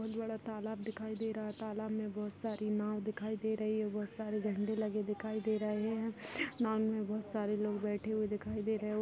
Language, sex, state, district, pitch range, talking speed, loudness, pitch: Hindi, female, Chhattisgarh, Kabirdham, 210-220 Hz, 235 wpm, -38 LUFS, 215 Hz